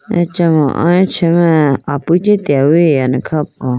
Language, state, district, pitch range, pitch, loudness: Idu Mishmi, Arunachal Pradesh, Lower Dibang Valley, 145-175 Hz, 160 Hz, -12 LUFS